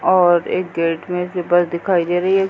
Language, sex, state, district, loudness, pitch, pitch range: Hindi, female, Uttar Pradesh, Hamirpur, -18 LUFS, 175 Hz, 175-180 Hz